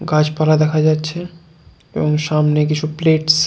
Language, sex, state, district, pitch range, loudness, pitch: Bengali, male, West Bengal, Jalpaiguri, 150-160 Hz, -16 LUFS, 155 Hz